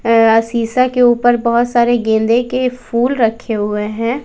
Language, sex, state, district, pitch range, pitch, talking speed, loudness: Hindi, female, Bihar, West Champaran, 225-245 Hz, 235 Hz, 155 wpm, -14 LUFS